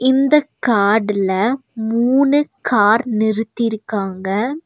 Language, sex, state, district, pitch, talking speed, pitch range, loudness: Tamil, female, Tamil Nadu, Nilgiris, 225 Hz, 65 wpm, 210-260 Hz, -17 LUFS